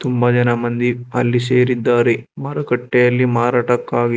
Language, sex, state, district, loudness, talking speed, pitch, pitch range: Kannada, male, Karnataka, Bangalore, -16 LUFS, 100 wpm, 120 Hz, 120-125 Hz